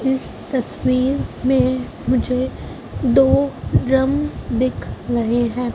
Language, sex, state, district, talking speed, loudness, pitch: Hindi, male, Madhya Pradesh, Dhar, 95 wpm, -19 LUFS, 245 Hz